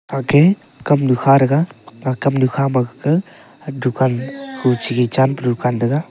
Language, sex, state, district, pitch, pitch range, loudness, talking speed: Wancho, male, Arunachal Pradesh, Longding, 135 Hz, 125-140 Hz, -17 LUFS, 135 wpm